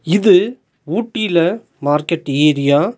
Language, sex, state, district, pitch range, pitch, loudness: Tamil, male, Tamil Nadu, Nilgiris, 145-210 Hz, 170 Hz, -15 LUFS